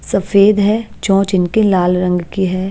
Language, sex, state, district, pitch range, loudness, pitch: Hindi, female, Punjab, Pathankot, 180-205 Hz, -14 LUFS, 195 Hz